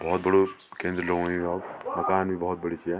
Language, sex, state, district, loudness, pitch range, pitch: Garhwali, male, Uttarakhand, Tehri Garhwal, -27 LUFS, 85-95 Hz, 90 Hz